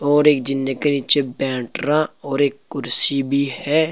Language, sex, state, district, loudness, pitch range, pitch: Hindi, male, Uttar Pradesh, Saharanpur, -18 LUFS, 135-145 Hz, 140 Hz